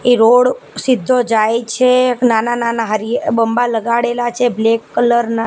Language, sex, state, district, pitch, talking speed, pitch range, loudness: Gujarati, female, Gujarat, Gandhinagar, 235 Hz, 155 wpm, 225-245 Hz, -14 LUFS